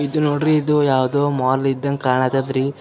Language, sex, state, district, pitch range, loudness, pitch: Kannada, male, Karnataka, Gulbarga, 130-145 Hz, -18 LUFS, 140 Hz